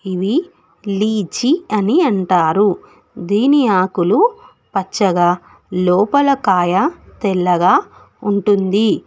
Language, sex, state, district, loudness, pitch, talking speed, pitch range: Telugu, female, Telangana, Hyderabad, -16 LUFS, 200 Hz, 75 wpm, 185-245 Hz